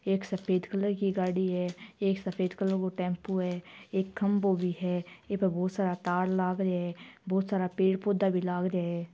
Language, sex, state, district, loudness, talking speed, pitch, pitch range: Marwari, female, Rajasthan, Churu, -30 LUFS, 205 wpm, 185 Hz, 180-195 Hz